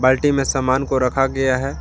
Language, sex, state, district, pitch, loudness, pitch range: Hindi, male, Jharkhand, Garhwa, 135 Hz, -18 LUFS, 130-135 Hz